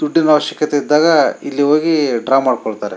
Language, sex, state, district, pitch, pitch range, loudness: Kannada, male, Karnataka, Shimoga, 150 Hz, 135-150 Hz, -14 LUFS